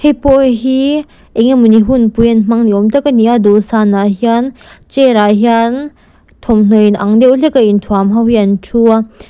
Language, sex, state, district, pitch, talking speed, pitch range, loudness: Mizo, female, Mizoram, Aizawl, 230 Hz, 195 wpm, 215-260 Hz, -10 LUFS